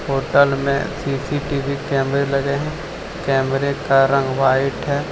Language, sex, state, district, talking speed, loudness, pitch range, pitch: Hindi, male, Jharkhand, Deoghar, 130 wpm, -19 LUFS, 135-140 Hz, 140 Hz